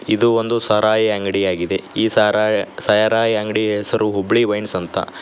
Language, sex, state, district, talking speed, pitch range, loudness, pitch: Kannada, male, Karnataka, Koppal, 140 wpm, 100-110 Hz, -17 LUFS, 105 Hz